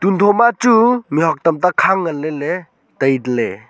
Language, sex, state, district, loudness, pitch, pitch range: Wancho, male, Arunachal Pradesh, Longding, -15 LUFS, 165 Hz, 145-200 Hz